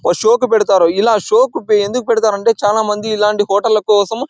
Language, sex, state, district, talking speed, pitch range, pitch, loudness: Telugu, male, Andhra Pradesh, Anantapur, 225 wpm, 210-250 Hz, 215 Hz, -13 LUFS